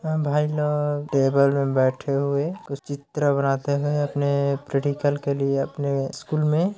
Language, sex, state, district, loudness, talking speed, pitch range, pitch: Hindi, male, Chhattisgarh, Korba, -23 LUFS, 150 wpm, 140-150 Hz, 140 Hz